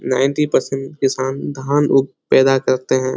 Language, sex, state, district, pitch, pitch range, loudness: Hindi, male, Bihar, Lakhisarai, 135 Hz, 130-140 Hz, -17 LUFS